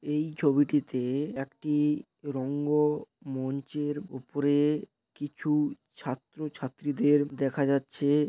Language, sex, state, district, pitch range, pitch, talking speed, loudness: Bengali, male, West Bengal, Paschim Medinipur, 135-150 Hz, 145 Hz, 80 wpm, -29 LUFS